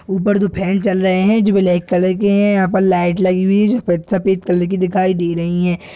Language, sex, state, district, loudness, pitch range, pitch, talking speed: Hindi, male, Bihar, Purnia, -15 LUFS, 180-195 Hz, 190 Hz, 260 wpm